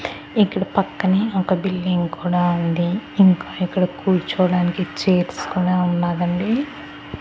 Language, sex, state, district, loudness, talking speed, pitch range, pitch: Telugu, female, Andhra Pradesh, Annamaya, -20 LUFS, 110 wpm, 175-190 Hz, 180 Hz